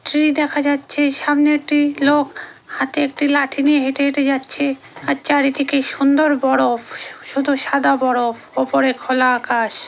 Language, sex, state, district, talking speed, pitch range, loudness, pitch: Bengali, female, West Bengal, North 24 Parganas, 145 wpm, 260-290 Hz, -17 LUFS, 280 Hz